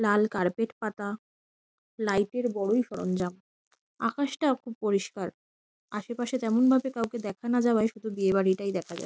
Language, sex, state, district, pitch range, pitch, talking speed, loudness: Bengali, female, West Bengal, Kolkata, 200-240 Hz, 220 Hz, 125 wpm, -29 LUFS